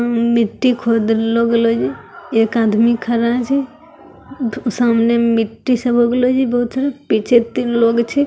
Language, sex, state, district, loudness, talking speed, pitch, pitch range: Angika, female, Bihar, Begusarai, -16 LUFS, 145 wpm, 235 Hz, 230-255 Hz